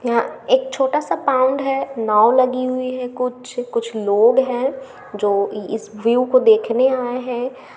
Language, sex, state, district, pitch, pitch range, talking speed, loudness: Hindi, female, Bihar, Gaya, 250 Hz, 230-260 Hz, 170 wpm, -18 LUFS